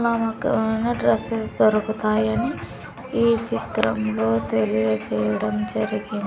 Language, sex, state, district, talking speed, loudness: Telugu, female, Andhra Pradesh, Sri Satya Sai, 105 wpm, -22 LUFS